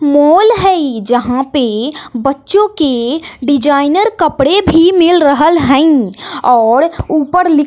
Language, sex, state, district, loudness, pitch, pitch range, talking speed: Hindi, female, Bihar, West Champaran, -11 LUFS, 290 Hz, 270-335 Hz, 125 wpm